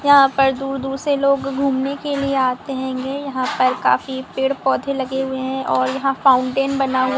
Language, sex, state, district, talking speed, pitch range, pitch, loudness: Hindi, female, Goa, North and South Goa, 210 wpm, 260-275 Hz, 270 Hz, -19 LUFS